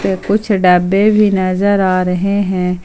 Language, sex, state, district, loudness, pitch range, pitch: Hindi, female, Jharkhand, Palamu, -13 LUFS, 180-200 Hz, 190 Hz